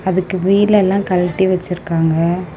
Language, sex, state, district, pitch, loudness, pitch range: Tamil, female, Tamil Nadu, Namakkal, 185 Hz, -15 LUFS, 175-190 Hz